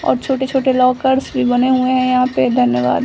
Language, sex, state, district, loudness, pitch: Hindi, female, Bihar, Samastipur, -15 LUFS, 255 Hz